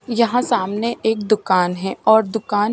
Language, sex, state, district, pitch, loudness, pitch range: Hindi, female, Maharashtra, Washim, 220 Hz, -18 LUFS, 205-235 Hz